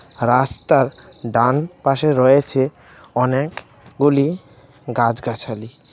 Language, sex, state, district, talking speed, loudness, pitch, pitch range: Bengali, male, Tripura, West Tripura, 60 wpm, -18 LUFS, 135 Hz, 120-145 Hz